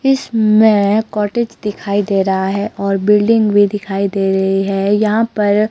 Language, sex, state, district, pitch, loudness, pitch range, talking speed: Hindi, female, Himachal Pradesh, Shimla, 205 Hz, -14 LUFS, 195-215 Hz, 160 wpm